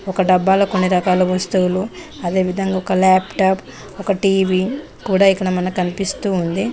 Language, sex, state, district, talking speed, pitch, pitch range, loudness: Telugu, female, Telangana, Mahabubabad, 135 wpm, 190 Hz, 185-195 Hz, -17 LUFS